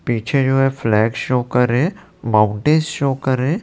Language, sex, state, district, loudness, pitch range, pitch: Hindi, male, Chandigarh, Chandigarh, -17 LUFS, 115-140 Hz, 130 Hz